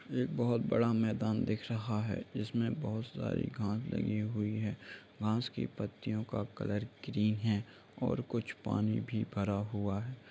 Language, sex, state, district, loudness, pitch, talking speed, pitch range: Hindi, male, Bihar, Lakhisarai, -36 LUFS, 110 Hz, 165 wpm, 105-115 Hz